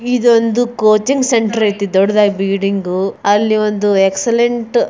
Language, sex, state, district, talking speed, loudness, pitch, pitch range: Kannada, female, Karnataka, Bijapur, 135 wpm, -14 LUFS, 215 Hz, 200-235 Hz